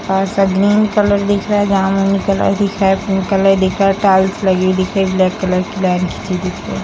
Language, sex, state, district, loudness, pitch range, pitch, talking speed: Hindi, female, Bihar, Sitamarhi, -14 LUFS, 190-200 Hz, 195 Hz, 270 wpm